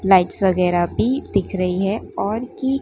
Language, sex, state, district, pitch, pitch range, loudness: Hindi, female, Gujarat, Gandhinagar, 195 Hz, 185-230 Hz, -20 LUFS